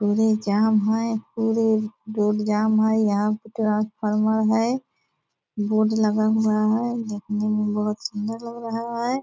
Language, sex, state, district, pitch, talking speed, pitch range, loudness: Hindi, female, Bihar, Purnia, 215 Hz, 150 wpm, 210-225 Hz, -23 LUFS